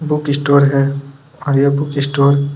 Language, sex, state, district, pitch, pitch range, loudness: Hindi, male, Chhattisgarh, Kabirdham, 140 Hz, 140-145 Hz, -14 LUFS